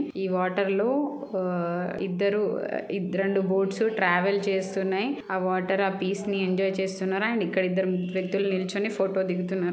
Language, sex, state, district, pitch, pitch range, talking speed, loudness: Telugu, female, Andhra Pradesh, Chittoor, 190 Hz, 185-200 Hz, 135 wpm, -26 LUFS